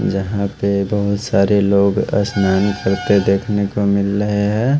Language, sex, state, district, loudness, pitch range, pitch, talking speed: Hindi, male, Haryana, Charkhi Dadri, -17 LUFS, 100-105 Hz, 100 Hz, 150 wpm